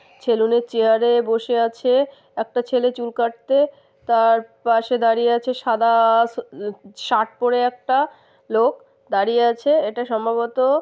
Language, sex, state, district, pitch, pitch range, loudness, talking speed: Bengali, female, West Bengal, North 24 Parganas, 235 Hz, 230-255 Hz, -19 LUFS, 135 wpm